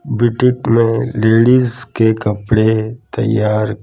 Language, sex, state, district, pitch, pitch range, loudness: Hindi, male, Gujarat, Gandhinagar, 115 Hz, 110-120 Hz, -14 LUFS